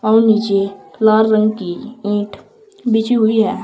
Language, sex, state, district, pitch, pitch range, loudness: Hindi, female, Uttar Pradesh, Saharanpur, 220 Hz, 205-225 Hz, -16 LUFS